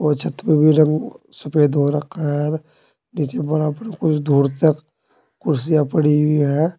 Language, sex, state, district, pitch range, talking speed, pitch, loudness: Hindi, male, Uttar Pradesh, Saharanpur, 145-155 Hz, 160 wpm, 150 Hz, -18 LUFS